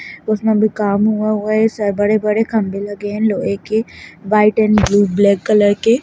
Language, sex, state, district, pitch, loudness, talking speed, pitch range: Hindi, female, Bihar, Begusarai, 210 Hz, -15 LUFS, 180 wpm, 205-215 Hz